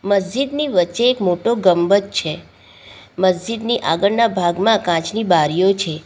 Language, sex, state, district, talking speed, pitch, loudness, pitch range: Gujarati, female, Gujarat, Valsad, 120 wpm, 185 Hz, -17 LUFS, 170-220 Hz